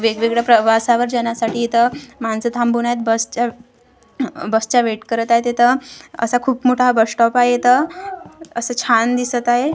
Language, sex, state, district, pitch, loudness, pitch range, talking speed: Marathi, female, Maharashtra, Gondia, 240 Hz, -17 LUFS, 230-245 Hz, 155 wpm